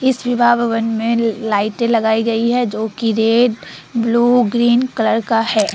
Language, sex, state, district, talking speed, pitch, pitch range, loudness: Hindi, female, Bihar, Vaishali, 175 wpm, 230 Hz, 220-240 Hz, -16 LUFS